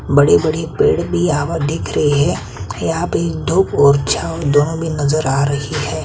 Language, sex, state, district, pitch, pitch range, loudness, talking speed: Hindi, male, Chhattisgarh, Kabirdham, 145 Hz, 140-160 Hz, -16 LUFS, 210 wpm